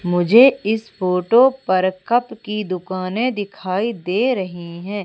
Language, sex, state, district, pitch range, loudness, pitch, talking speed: Hindi, female, Madhya Pradesh, Umaria, 185-235 Hz, -18 LUFS, 200 Hz, 130 wpm